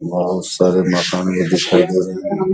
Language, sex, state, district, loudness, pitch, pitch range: Hindi, male, Bihar, Vaishali, -16 LUFS, 90 Hz, 90-95 Hz